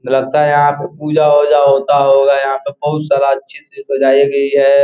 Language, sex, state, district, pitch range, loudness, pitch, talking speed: Hindi, male, Bihar, Gopalganj, 135-150 Hz, -12 LUFS, 140 Hz, 210 wpm